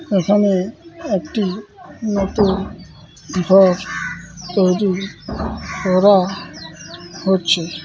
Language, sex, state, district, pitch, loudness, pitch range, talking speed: Bengali, male, West Bengal, Malda, 190 Hz, -18 LUFS, 170-200 Hz, 55 wpm